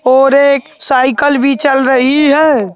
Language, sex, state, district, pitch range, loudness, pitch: Hindi, male, Madhya Pradesh, Bhopal, 265-285 Hz, -9 LUFS, 275 Hz